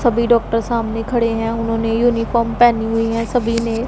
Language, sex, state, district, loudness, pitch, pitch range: Hindi, female, Punjab, Pathankot, -17 LUFS, 230 Hz, 225-235 Hz